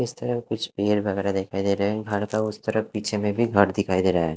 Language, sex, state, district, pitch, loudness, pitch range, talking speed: Hindi, male, Odisha, Khordha, 105 Hz, -24 LUFS, 100-110 Hz, 290 wpm